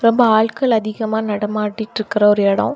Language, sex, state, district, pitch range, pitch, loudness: Tamil, female, Tamil Nadu, Kanyakumari, 210-220 Hz, 220 Hz, -17 LUFS